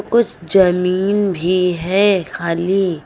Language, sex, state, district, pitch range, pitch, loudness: Hindi, female, Uttar Pradesh, Lucknow, 175-195 Hz, 185 Hz, -16 LUFS